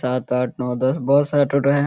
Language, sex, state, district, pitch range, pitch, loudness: Hindi, male, Bihar, Kishanganj, 125-140 Hz, 130 Hz, -20 LUFS